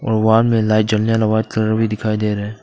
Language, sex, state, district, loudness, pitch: Hindi, male, Arunachal Pradesh, Papum Pare, -16 LUFS, 110 Hz